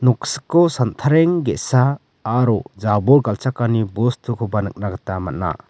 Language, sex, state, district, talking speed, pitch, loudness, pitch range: Garo, male, Meghalaya, West Garo Hills, 105 wpm, 120 Hz, -19 LUFS, 105-135 Hz